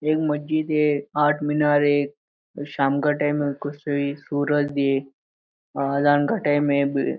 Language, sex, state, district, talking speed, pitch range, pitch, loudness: Hindi, male, Maharashtra, Aurangabad, 165 wpm, 140-150 Hz, 145 Hz, -22 LUFS